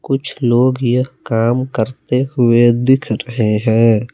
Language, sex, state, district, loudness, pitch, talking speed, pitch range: Hindi, male, Jharkhand, Palamu, -15 LUFS, 120 Hz, 130 wpm, 115-130 Hz